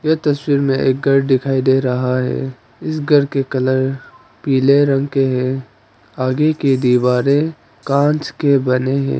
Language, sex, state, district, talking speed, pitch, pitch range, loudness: Hindi, female, Arunachal Pradesh, Papum Pare, 155 wpm, 135 Hz, 130-140 Hz, -16 LUFS